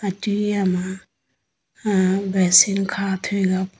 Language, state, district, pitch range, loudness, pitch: Idu Mishmi, Arunachal Pradesh, Lower Dibang Valley, 185-205 Hz, -19 LUFS, 195 Hz